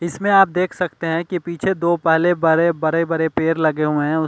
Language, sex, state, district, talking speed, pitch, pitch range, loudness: Hindi, male, Delhi, New Delhi, 225 wpm, 165 Hz, 160-175 Hz, -18 LUFS